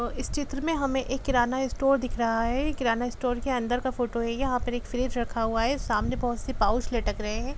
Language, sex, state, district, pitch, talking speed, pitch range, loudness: Hindi, female, Jharkhand, Jamtara, 245 Hz, 255 wpm, 235-265 Hz, -28 LUFS